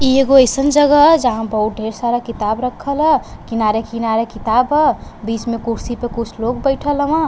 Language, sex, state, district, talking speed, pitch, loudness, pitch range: Bhojpuri, female, Uttar Pradesh, Varanasi, 195 wpm, 240 Hz, -16 LUFS, 225-275 Hz